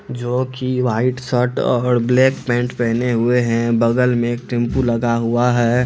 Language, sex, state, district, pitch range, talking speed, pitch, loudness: Hindi, male, Bihar, Araria, 120-125 Hz, 175 wpm, 120 Hz, -17 LUFS